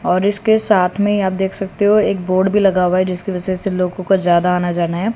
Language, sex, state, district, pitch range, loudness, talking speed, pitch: Hindi, female, Haryana, Rohtak, 180-205 Hz, -16 LUFS, 280 wpm, 190 Hz